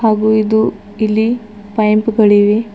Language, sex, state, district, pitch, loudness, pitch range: Kannada, female, Karnataka, Bidar, 215 Hz, -13 LUFS, 210-220 Hz